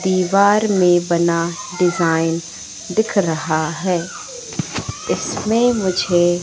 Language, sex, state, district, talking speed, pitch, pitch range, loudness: Hindi, female, Madhya Pradesh, Katni, 85 wpm, 180 Hz, 170-200 Hz, -18 LUFS